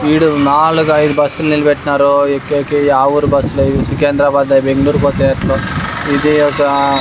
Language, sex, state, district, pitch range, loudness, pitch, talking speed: Telugu, male, Andhra Pradesh, Sri Satya Sai, 140-150 Hz, -12 LUFS, 145 Hz, 160 wpm